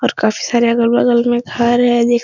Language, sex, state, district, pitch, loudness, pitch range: Hindi, female, Bihar, Supaul, 240 Hz, -14 LUFS, 235-240 Hz